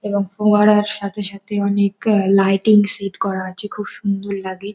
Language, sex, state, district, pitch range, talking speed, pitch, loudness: Bengali, female, West Bengal, North 24 Parganas, 195-210 Hz, 165 wpm, 200 Hz, -18 LUFS